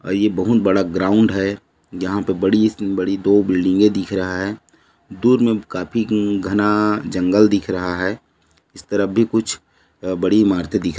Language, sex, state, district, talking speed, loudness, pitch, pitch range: Hindi, male, Chhattisgarh, Bilaspur, 170 wpm, -18 LUFS, 100 Hz, 95-105 Hz